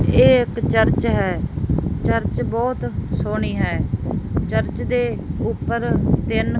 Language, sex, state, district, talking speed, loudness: Punjabi, female, Punjab, Fazilka, 110 wpm, -20 LUFS